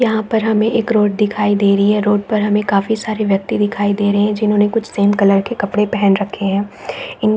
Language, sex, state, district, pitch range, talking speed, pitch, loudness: Hindi, female, Chhattisgarh, Raigarh, 205-215 Hz, 235 wpm, 210 Hz, -15 LUFS